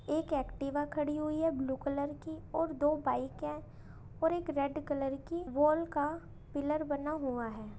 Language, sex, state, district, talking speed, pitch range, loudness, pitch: Hindi, female, Uttar Pradesh, Muzaffarnagar, 175 wpm, 265-310 Hz, -35 LUFS, 290 Hz